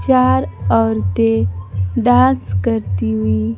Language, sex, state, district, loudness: Hindi, female, Bihar, Kaimur, -16 LUFS